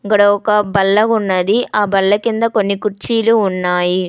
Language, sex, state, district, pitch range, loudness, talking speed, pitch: Telugu, female, Telangana, Hyderabad, 195-220 Hz, -14 LUFS, 145 wpm, 205 Hz